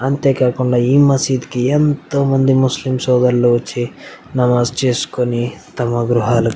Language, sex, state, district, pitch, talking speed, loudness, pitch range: Telugu, male, Andhra Pradesh, Anantapur, 125 Hz, 120 wpm, -15 LUFS, 120-135 Hz